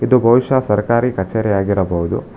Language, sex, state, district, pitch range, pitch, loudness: Kannada, male, Karnataka, Bangalore, 95-120 Hz, 105 Hz, -16 LUFS